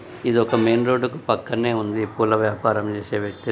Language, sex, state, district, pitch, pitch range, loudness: Telugu, male, Andhra Pradesh, Guntur, 110 Hz, 105-120 Hz, -21 LUFS